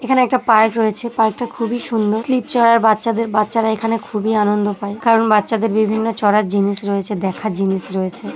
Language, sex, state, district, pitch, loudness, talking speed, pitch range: Bengali, female, West Bengal, Jhargram, 220 Hz, -17 LUFS, 170 wpm, 205-230 Hz